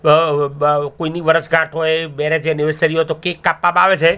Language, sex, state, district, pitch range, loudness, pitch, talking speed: Gujarati, male, Gujarat, Gandhinagar, 150-165 Hz, -16 LUFS, 160 Hz, 185 wpm